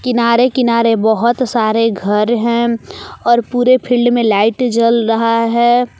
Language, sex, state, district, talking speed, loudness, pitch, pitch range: Hindi, female, Jharkhand, Palamu, 130 wpm, -13 LUFS, 235 Hz, 230-245 Hz